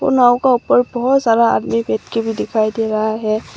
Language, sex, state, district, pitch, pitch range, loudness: Hindi, female, Arunachal Pradesh, Longding, 225 Hz, 215-245 Hz, -16 LUFS